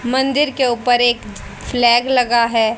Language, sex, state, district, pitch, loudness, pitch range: Hindi, female, Haryana, Charkhi Dadri, 245 Hz, -15 LUFS, 235-260 Hz